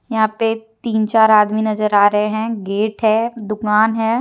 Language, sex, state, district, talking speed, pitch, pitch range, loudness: Hindi, female, Jharkhand, Deoghar, 185 wpm, 220 Hz, 215-225 Hz, -16 LUFS